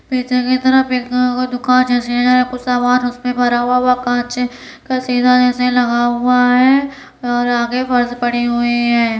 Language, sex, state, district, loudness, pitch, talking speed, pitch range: Hindi, female, Uttar Pradesh, Deoria, -14 LUFS, 250 Hz, 170 wpm, 245-250 Hz